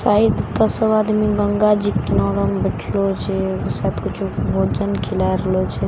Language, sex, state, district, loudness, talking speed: Maithili, female, Bihar, Katihar, -19 LUFS, 165 wpm